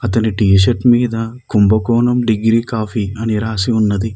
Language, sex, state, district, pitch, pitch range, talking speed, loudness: Telugu, male, Telangana, Mahabubabad, 110 Hz, 105-115 Hz, 145 wpm, -15 LUFS